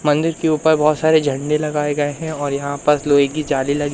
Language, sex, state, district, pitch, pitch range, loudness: Hindi, male, Madhya Pradesh, Umaria, 150 Hz, 145-155 Hz, -18 LUFS